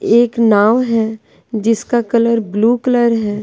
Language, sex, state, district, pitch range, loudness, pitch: Hindi, female, Bihar, Patna, 220-240 Hz, -14 LUFS, 230 Hz